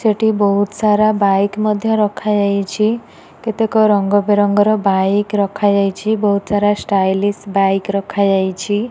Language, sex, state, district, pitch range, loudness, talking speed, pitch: Odia, female, Odisha, Nuapada, 200-215 Hz, -15 LUFS, 115 wpm, 205 Hz